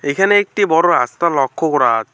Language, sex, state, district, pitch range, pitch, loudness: Bengali, male, West Bengal, Alipurduar, 140-195 Hz, 160 Hz, -15 LUFS